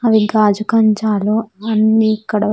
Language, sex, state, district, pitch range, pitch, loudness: Telugu, female, Andhra Pradesh, Sri Satya Sai, 210-220 Hz, 215 Hz, -15 LUFS